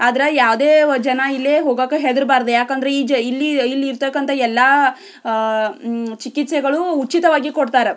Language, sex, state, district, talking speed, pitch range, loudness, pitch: Kannada, female, Karnataka, Belgaum, 130 wpm, 250-290 Hz, -16 LUFS, 270 Hz